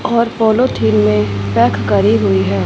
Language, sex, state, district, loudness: Hindi, female, Punjab, Fazilka, -13 LUFS